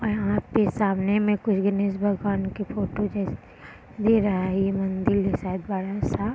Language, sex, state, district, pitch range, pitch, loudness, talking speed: Hindi, female, Bihar, Purnia, 195-210 Hz, 200 Hz, -25 LUFS, 200 wpm